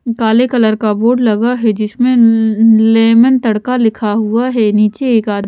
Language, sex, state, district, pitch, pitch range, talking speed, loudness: Hindi, female, Chhattisgarh, Raipur, 225 Hz, 215-240 Hz, 175 wpm, -11 LUFS